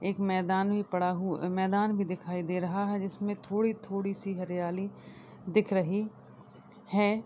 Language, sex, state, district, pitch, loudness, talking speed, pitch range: Hindi, female, Chhattisgarh, Bilaspur, 195 Hz, -31 LUFS, 150 wpm, 180-205 Hz